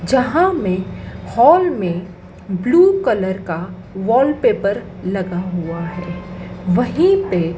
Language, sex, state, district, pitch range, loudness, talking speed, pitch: Hindi, female, Madhya Pradesh, Dhar, 180-295 Hz, -17 LUFS, 105 wpm, 190 Hz